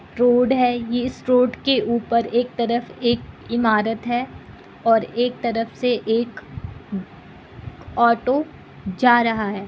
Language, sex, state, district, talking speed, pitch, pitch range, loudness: Hindi, female, Bihar, Kishanganj, 130 wpm, 235 Hz, 225-245 Hz, -20 LUFS